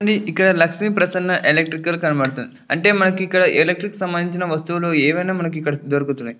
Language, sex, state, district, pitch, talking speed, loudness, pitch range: Telugu, male, Telangana, Nalgonda, 175 Hz, 140 wpm, -18 LUFS, 150-185 Hz